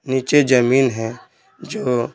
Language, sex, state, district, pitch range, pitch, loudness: Hindi, male, Bihar, Patna, 120-130 Hz, 125 Hz, -17 LUFS